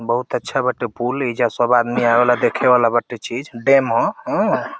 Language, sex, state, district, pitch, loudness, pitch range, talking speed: Bhojpuri, male, Uttar Pradesh, Deoria, 120 Hz, -18 LUFS, 120-125 Hz, 200 wpm